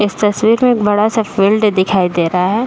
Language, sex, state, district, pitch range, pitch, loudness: Hindi, female, Uttar Pradesh, Deoria, 190-220 Hz, 205 Hz, -13 LUFS